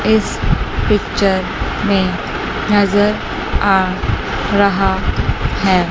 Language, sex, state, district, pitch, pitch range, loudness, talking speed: Hindi, female, Chandigarh, Chandigarh, 195 Hz, 190-205 Hz, -16 LUFS, 70 wpm